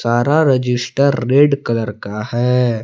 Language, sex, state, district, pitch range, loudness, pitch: Hindi, male, Jharkhand, Palamu, 115-140 Hz, -16 LUFS, 125 Hz